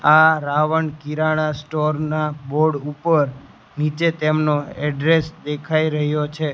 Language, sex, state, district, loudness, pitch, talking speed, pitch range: Gujarati, male, Gujarat, Gandhinagar, -20 LUFS, 155 Hz, 120 wpm, 150-155 Hz